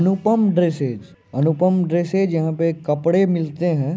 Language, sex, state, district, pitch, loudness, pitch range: Hindi, male, Bihar, Purnia, 170 Hz, -19 LUFS, 160-185 Hz